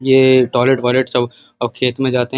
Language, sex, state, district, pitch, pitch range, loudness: Hindi, male, Uttar Pradesh, Muzaffarnagar, 125 Hz, 125-130 Hz, -15 LUFS